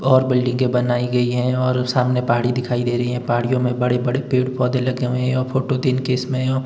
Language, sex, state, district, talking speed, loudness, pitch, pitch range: Hindi, male, Himachal Pradesh, Shimla, 245 wpm, -19 LUFS, 125 Hz, 125-130 Hz